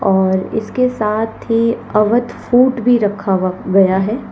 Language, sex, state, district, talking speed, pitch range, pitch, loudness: Hindi, female, Uttar Pradesh, Lalitpur, 155 wpm, 195-235 Hz, 215 Hz, -15 LUFS